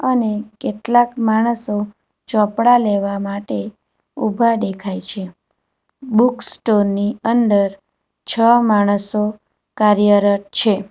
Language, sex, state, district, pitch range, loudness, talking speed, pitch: Gujarati, female, Gujarat, Valsad, 205-235 Hz, -17 LUFS, 90 wpm, 210 Hz